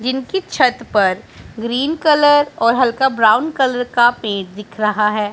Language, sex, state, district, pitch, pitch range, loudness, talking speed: Hindi, female, Punjab, Pathankot, 240 Hz, 215-265 Hz, -15 LUFS, 160 wpm